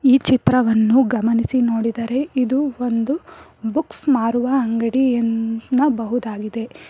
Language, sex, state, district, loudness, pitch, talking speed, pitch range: Kannada, female, Karnataka, Bangalore, -19 LUFS, 245 Hz, 80 wpm, 230-265 Hz